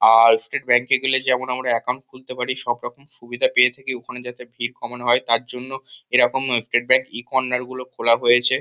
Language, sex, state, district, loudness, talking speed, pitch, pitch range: Bengali, male, West Bengal, Kolkata, -19 LUFS, 200 wpm, 125 Hz, 120-130 Hz